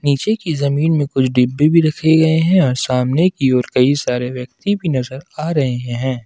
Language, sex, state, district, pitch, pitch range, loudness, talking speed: Hindi, male, Jharkhand, Ranchi, 140 Hz, 125-160 Hz, -16 LUFS, 220 wpm